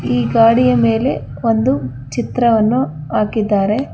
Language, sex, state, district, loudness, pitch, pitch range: Kannada, female, Karnataka, Bangalore, -15 LUFS, 220 Hz, 150-235 Hz